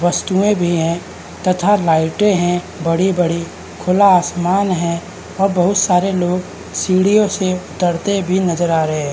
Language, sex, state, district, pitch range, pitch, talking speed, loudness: Hindi, male, Uttarakhand, Uttarkashi, 170-195 Hz, 180 Hz, 150 wpm, -16 LUFS